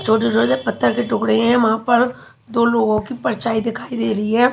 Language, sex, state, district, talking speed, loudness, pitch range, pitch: Hindi, female, Haryana, Charkhi Dadri, 210 wpm, -18 LUFS, 220-240 Hz, 225 Hz